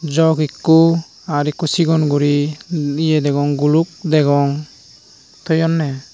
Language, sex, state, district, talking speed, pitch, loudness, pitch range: Chakma, male, Tripura, Unakoti, 105 wpm, 155 Hz, -16 LUFS, 145-160 Hz